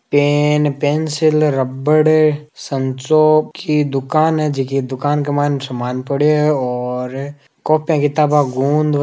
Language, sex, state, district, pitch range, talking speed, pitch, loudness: Hindi, male, Rajasthan, Nagaur, 135-155 Hz, 135 wpm, 145 Hz, -16 LUFS